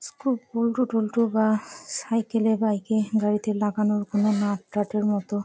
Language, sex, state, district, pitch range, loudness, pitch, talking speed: Bengali, female, West Bengal, Jalpaiguri, 210-230 Hz, -25 LUFS, 215 Hz, 155 wpm